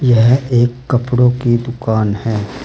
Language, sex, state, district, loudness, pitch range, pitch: Hindi, male, Uttar Pradesh, Saharanpur, -15 LUFS, 115-125 Hz, 120 Hz